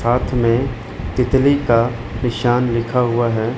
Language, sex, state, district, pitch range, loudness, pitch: Hindi, male, Chandigarh, Chandigarh, 115-125 Hz, -17 LUFS, 120 Hz